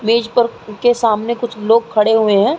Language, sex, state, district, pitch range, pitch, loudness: Hindi, female, Uttar Pradesh, Muzaffarnagar, 210-235 Hz, 225 Hz, -15 LUFS